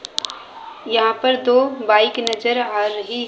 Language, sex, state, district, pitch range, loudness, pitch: Hindi, female, Haryana, Jhajjar, 220-255 Hz, -18 LUFS, 235 Hz